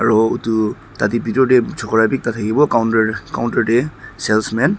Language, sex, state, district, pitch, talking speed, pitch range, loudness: Nagamese, male, Nagaland, Dimapur, 115 Hz, 190 wpm, 110-120 Hz, -17 LUFS